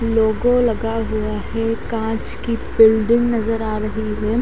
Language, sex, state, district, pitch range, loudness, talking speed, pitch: Hindi, female, Haryana, Charkhi Dadri, 220-230 Hz, -19 LUFS, 150 wpm, 225 Hz